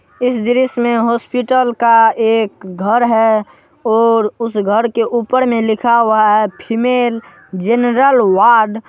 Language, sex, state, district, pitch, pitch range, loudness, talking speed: Hindi, male, Bihar, Supaul, 230 Hz, 220-240 Hz, -13 LUFS, 140 wpm